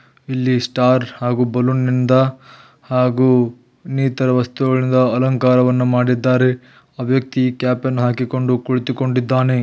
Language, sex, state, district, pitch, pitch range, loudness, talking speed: Kannada, male, Karnataka, Belgaum, 125 Hz, 125-130 Hz, -17 LUFS, 105 wpm